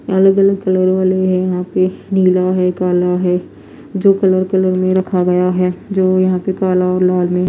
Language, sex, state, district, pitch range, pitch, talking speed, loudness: Hindi, female, Odisha, Nuapada, 180-190 Hz, 185 Hz, 200 wpm, -14 LUFS